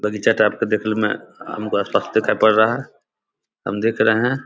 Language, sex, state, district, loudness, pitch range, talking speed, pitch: Hindi, male, Bihar, Samastipur, -19 LUFS, 105-115 Hz, 215 wpm, 110 Hz